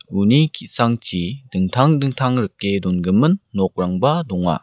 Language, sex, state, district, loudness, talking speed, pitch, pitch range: Garo, male, Meghalaya, West Garo Hills, -19 LUFS, 105 wpm, 105 Hz, 90-135 Hz